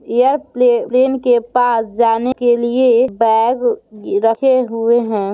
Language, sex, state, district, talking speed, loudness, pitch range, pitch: Hindi, female, Bihar, Muzaffarpur, 135 wpm, -14 LUFS, 230-255 Hz, 240 Hz